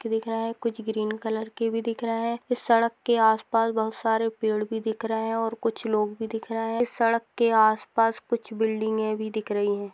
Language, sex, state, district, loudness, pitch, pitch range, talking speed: Hindi, female, Bihar, Begusarai, -26 LUFS, 225 Hz, 220-230 Hz, 240 wpm